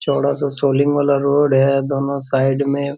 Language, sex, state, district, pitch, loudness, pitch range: Hindi, male, Bihar, Purnia, 140 Hz, -17 LUFS, 135-140 Hz